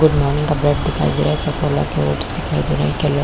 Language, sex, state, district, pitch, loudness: Hindi, female, Chhattisgarh, Korba, 140 Hz, -18 LUFS